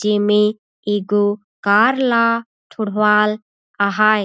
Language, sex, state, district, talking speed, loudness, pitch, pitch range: Surgujia, female, Chhattisgarh, Sarguja, 85 wpm, -17 LUFS, 210 Hz, 205-215 Hz